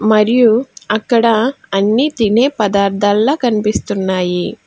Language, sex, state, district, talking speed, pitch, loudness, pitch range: Telugu, female, Telangana, Hyderabad, 75 wpm, 220 Hz, -14 LUFS, 205-240 Hz